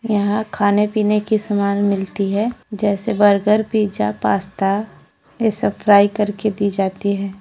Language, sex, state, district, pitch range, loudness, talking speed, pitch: Hindi, female, Jharkhand, Deoghar, 200-215 Hz, -18 LUFS, 145 wpm, 205 Hz